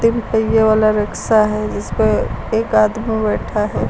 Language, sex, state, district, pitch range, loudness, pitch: Hindi, female, Uttar Pradesh, Lucknow, 215-220 Hz, -16 LUFS, 220 Hz